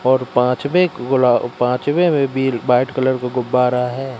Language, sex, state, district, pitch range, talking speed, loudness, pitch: Hindi, male, Madhya Pradesh, Katni, 125-135 Hz, 170 wpm, -17 LUFS, 125 Hz